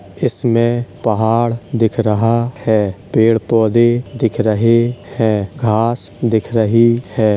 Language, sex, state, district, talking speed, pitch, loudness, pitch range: Hindi, male, Uttar Pradesh, Hamirpur, 115 wpm, 115 Hz, -15 LUFS, 110-120 Hz